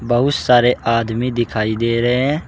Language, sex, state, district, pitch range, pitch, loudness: Hindi, male, Uttar Pradesh, Saharanpur, 115-125 Hz, 120 Hz, -17 LUFS